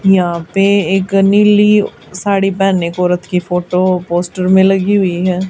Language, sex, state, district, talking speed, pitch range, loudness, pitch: Hindi, female, Haryana, Charkhi Dadri, 150 wpm, 180-195 Hz, -13 LUFS, 190 Hz